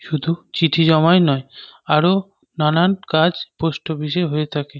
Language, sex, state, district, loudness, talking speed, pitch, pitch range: Bengali, male, West Bengal, North 24 Parganas, -18 LUFS, 150 wpm, 160 Hz, 150-170 Hz